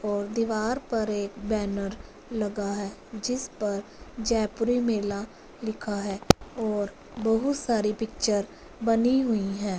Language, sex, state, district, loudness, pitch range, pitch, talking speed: Hindi, female, Punjab, Fazilka, -28 LUFS, 205-230 Hz, 215 Hz, 125 wpm